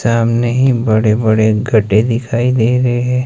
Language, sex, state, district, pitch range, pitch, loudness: Hindi, male, Himachal Pradesh, Shimla, 110-125 Hz, 115 Hz, -13 LUFS